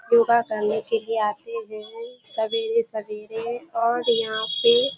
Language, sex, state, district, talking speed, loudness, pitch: Hindi, female, Bihar, Kishanganj, 130 wpm, -24 LUFS, 230 Hz